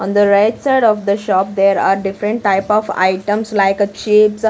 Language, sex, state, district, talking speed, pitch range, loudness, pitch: English, female, Punjab, Kapurthala, 225 wpm, 195-215 Hz, -14 LUFS, 205 Hz